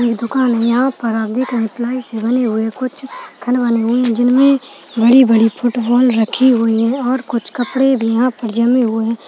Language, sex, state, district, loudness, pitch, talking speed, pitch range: Hindi, female, Chhattisgarh, Balrampur, -15 LUFS, 240 Hz, 200 wpm, 230-255 Hz